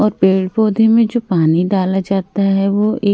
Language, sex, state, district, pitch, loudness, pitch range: Hindi, female, Bihar, Katihar, 195 Hz, -15 LUFS, 190-215 Hz